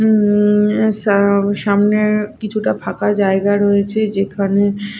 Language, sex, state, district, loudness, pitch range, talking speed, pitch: Bengali, female, Odisha, Khordha, -15 LUFS, 200-210 Hz, 95 wpm, 205 Hz